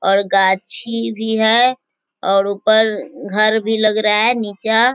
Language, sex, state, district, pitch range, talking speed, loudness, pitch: Hindi, female, Bihar, East Champaran, 200-225 Hz, 145 wpm, -15 LUFS, 220 Hz